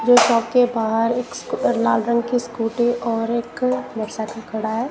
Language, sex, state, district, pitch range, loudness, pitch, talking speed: Hindi, female, Punjab, Kapurthala, 225-245 Hz, -20 LUFS, 235 Hz, 170 wpm